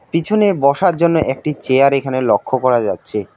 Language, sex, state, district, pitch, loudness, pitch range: Bengali, male, West Bengal, Alipurduar, 140 Hz, -15 LUFS, 130-170 Hz